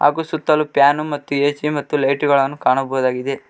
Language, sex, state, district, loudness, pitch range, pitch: Kannada, male, Karnataka, Koppal, -18 LUFS, 135-150 Hz, 145 Hz